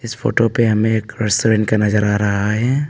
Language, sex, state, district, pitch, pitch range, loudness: Hindi, male, Arunachal Pradesh, Papum Pare, 110 Hz, 105-115 Hz, -16 LUFS